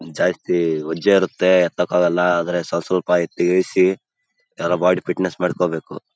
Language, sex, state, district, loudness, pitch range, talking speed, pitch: Kannada, male, Karnataka, Raichur, -19 LUFS, 85-95 Hz, 145 wpm, 90 Hz